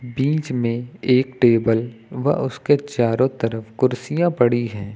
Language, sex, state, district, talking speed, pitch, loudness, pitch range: Hindi, male, Uttar Pradesh, Lucknow, 135 wpm, 125 Hz, -20 LUFS, 115-135 Hz